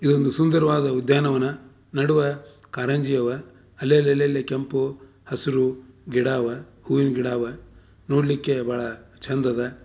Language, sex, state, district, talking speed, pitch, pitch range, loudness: Kannada, male, Karnataka, Dharwad, 120 wpm, 135 Hz, 125-140 Hz, -23 LUFS